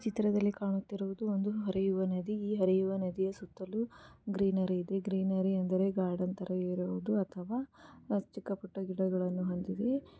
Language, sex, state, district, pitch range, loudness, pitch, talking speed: Kannada, female, Karnataka, Gulbarga, 185-205 Hz, -34 LUFS, 195 Hz, 125 wpm